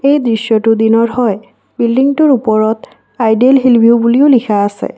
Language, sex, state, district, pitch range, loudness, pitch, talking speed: Assamese, female, Assam, Kamrup Metropolitan, 220-260 Hz, -11 LUFS, 235 Hz, 145 wpm